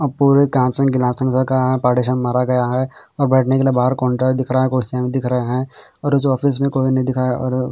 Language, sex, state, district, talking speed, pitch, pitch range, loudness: Hindi, male, Bihar, Patna, 255 wpm, 130 Hz, 125-135 Hz, -17 LUFS